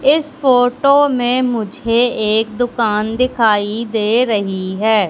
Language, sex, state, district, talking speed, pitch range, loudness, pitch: Hindi, female, Madhya Pradesh, Katni, 115 wpm, 215-255 Hz, -15 LUFS, 230 Hz